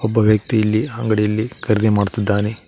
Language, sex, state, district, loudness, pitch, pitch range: Kannada, male, Karnataka, Koppal, -18 LUFS, 110 Hz, 105-110 Hz